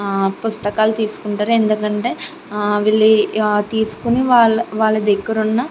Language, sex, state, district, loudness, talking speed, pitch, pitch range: Telugu, female, Andhra Pradesh, Chittoor, -17 LUFS, 115 wpm, 215 Hz, 210-225 Hz